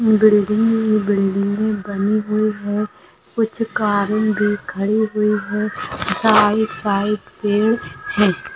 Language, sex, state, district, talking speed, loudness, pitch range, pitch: Hindi, female, Rajasthan, Nagaur, 105 wpm, -18 LUFS, 205-215 Hz, 210 Hz